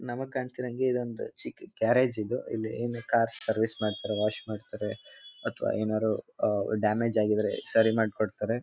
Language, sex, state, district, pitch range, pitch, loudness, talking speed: Kannada, male, Karnataka, Mysore, 110-120 Hz, 110 Hz, -29 LUFS, 145 wpm